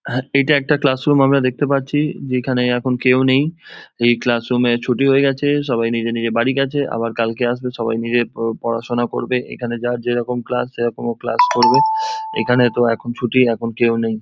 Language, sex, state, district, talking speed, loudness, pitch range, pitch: Bengali, male, West Bengal, Jhargram, 190 wpm, -18 LUFS, 120-135 Hz, 125 Hz